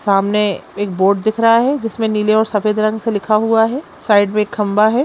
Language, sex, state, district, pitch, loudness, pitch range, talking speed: Hindi, female, Bihar, Lakhisarai, 215 Hz, -15 LUFS, 205-225 Hz, 240 wpm